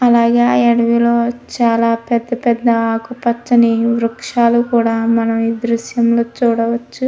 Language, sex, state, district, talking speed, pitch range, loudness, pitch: Telugu, female, Andhra Pradesh, Krishna, 95 wpm, 230-235 Hz, -15 LUFS, 235 Hz